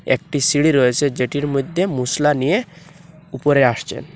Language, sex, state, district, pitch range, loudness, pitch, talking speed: Bengali, male, Assam, Hailakandi, 130-160 Hz, -18 LUFS, 145 Hz, 130 wpm